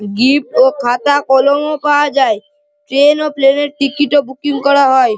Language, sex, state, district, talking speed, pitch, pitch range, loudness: Bengali, male, West Bengal, Malda, 185 wpm, 280 Hz, 265-295 Hz, -12 LUFS